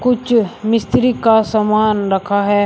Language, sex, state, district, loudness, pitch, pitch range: Hindi, male, Uttar Pradesh, Shamli, -15 LUFS, 215 Hz, 205-230 Hz